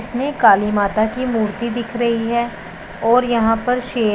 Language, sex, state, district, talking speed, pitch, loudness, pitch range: Hindi, male, Punjab, Pathankot, 175 wpm, 230 Hz, -18 LUFS, 215-240 Hz